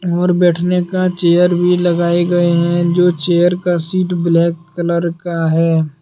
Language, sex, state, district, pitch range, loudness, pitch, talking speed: Hindi, male, Jharkhand, Deoghar, 170-180 Hz, -14 LUFS, 175 Hz, 160 wpm